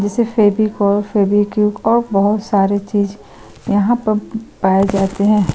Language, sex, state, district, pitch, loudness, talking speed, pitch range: Hindi, female, Chhattisgarh, Sukma, 205 Hz, -15 LUFS, 130 wpm, 195-215 Hz